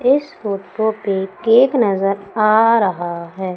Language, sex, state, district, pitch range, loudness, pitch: Hindi, female, Madhya Pradesh, Umaria, 195-230 Hz, -17 LUFS, 210 Hz